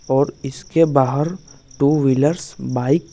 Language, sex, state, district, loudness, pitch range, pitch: Hindi, male, Bihar, West Champaran, -18 LUFS, 135-150 Hz, 145 Hz